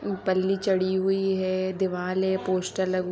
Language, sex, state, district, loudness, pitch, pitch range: Hindi, female, Jharkhand, Sahebganj, -26 LUFS, 190 Hz, 185-190 Hz